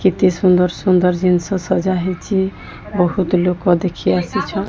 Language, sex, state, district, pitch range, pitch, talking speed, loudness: Odia, female, Odisha, Sambalpur, 180-185 Hz, 180 Hz, 130 wpm, -17 LUFS